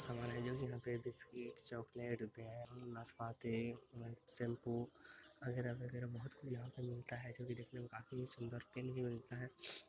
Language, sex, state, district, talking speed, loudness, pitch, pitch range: Hindi, male, Bihar, Gaya, 170 wpm, -44 LUFS, 120 Hz, 120-125 Hz